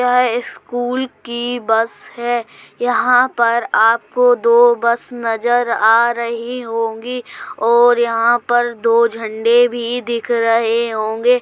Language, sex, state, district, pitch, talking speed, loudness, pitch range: Hindi, female, Uttar Pradesh, Jalaun, 235 Hz, 125 wpm, -16 LUFS, 230-245 Hz